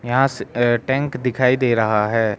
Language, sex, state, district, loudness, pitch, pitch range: Hindi, male, Arunachal Pradesh, Lower Dibang Valley, -19 LUFS, 120 Hz, 115-130 Hz